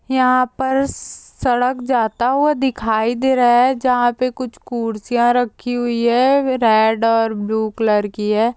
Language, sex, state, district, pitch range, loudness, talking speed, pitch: Hindi, female, Uttarakhand, Tehri Garhwal, 225-255 Hz, -17 LUFS, 160 wpm, 245 Hz